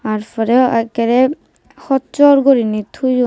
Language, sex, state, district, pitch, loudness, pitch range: Chakma, female, Tripura, West Tripura, 250 Hz, -14 LUFS, 230-270 Hz